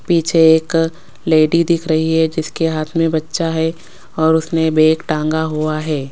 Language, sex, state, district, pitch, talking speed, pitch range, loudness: Hindi, female, Rajasthan, Jaipur, 160 Hz, 165 wpm, 155-165 Hz, -16 LUFS